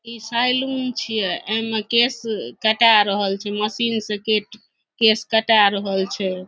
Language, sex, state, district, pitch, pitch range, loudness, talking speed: Maithili, female, Bihar, Saharsa, 220 Hz, 205-230 Hz, -19 LUFS, 140 wpm